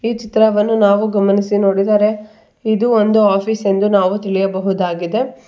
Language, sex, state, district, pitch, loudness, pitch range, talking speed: Kannada, female, Karnataka, Bangalore, 210 Hz, -15 LUFS, 195-220 Hz, 120 wpm